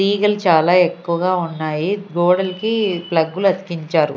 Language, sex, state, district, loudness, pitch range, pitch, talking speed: Telugu, female, Andhra Pradesh, Sri Satya Sai, -18 LUFS, 165-195 Hz, 180 Hz, 100 wpm